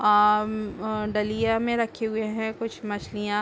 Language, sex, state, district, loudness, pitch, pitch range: Hindi, female, Chhattisgarh, Bilaspur, -26 LUFS, 215 Hz, 210-225 Hz